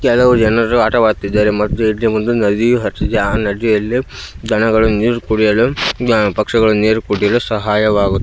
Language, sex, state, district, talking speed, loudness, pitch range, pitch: Kannada, male, Karnataka, Belgaum, 115 wpm, -14 LUFS, 105-115 Hz, 110 Hz